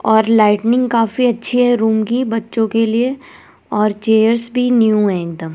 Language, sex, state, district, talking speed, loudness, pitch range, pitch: Hindi, female, Delhi, New Delhi, 175 wpm, -15 LUFS, 215-245 Hz, 225 Hz